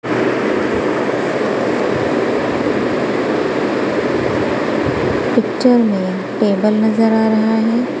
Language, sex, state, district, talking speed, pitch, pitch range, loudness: Hindi, female, Punjab, Kapurthala, 50 wpm, 220 Hz, 215-235 Hz, -16 LUFS